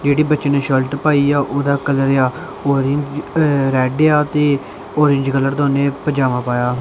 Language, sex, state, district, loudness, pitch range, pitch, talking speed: Punjabi, male, Punjab, Kapurthala, -16 LUFS, 135-145 Hz, 140 Hz, 160 wpm